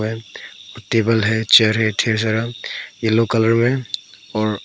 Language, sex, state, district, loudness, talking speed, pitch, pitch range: Hindi, male, Arunachal Pradesh, Papum Pare, -18 LUFS, 130 wpm, 110 Hz, 110-115 Hz